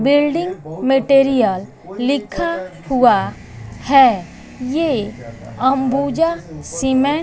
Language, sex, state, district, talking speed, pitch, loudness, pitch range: Hindi, female, Bihar, West Champaran, 75 wpm, 255 Hz, -17 LUFS, 170-275 Hz